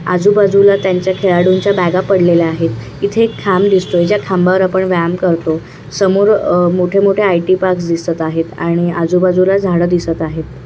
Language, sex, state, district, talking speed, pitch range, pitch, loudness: Marathi, female, Maharashtra, Chandrapur, 165 wpm, 170-195 Hz, 180 Hz, -13 LUFS